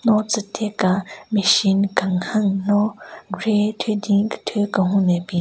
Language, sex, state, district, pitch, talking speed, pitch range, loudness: Rengma, female, Nagaland, Kohima, 205 Hz, 145 wpm, 195-215 Hz, -20 LUFS